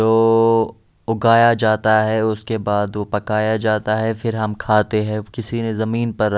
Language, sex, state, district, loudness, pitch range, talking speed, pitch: Hindi, male, Delhi, New Delhi, -18 LUFS, 105-115 Hz, 170 wpm, 110 Hz